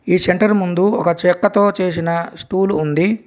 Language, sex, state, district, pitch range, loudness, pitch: Telugu, male, Telangana, Komaram Bheem, 175-205 Hz, -16 LUFS, 185 Hz